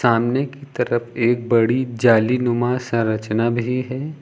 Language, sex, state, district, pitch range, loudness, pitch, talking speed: Hindi, male, Uttar Pradesh, Lucknow, 115-125 Hz, -19 LUFS, 120 Hz, 140 wpm